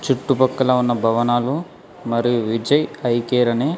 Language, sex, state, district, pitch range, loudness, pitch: Telugu, male, Andhra Pradesh, Sri Satya Sai, 120-135 Hz, -19 LUFS, 120 Hz